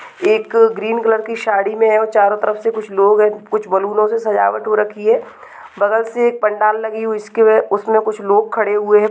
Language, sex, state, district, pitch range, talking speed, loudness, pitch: Hindi, female, Chhattisgarh, Balrampur, 210-225 Hz, 245 wpm, -15 LUFS, 215 Hz